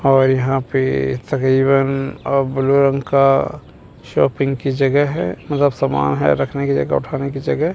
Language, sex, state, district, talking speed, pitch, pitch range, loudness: Hindi, male, Chandigarh, Chandigarh, 160 wpm, 135 Hz, 130-140 Hz, -17 LUFS